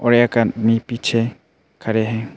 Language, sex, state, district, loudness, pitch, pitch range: Hindi, male, Arunachal Pradesh, Papum Pare, -19 LUFS, 115 Hz, 110-120 Hz